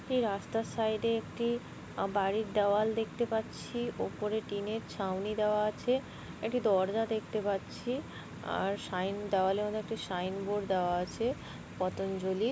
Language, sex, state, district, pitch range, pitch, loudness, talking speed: Bengali, female, West Bengal, Jhargram, 195-225 Hz, 210 Hz, -33 LUFS, 120 wpm